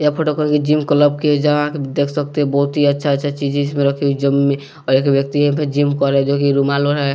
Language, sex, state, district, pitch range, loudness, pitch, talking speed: Hindi, male, Bihar, West Champaran, 140-145 Hz, -16 LUFS, 145 Hz, 300 wpm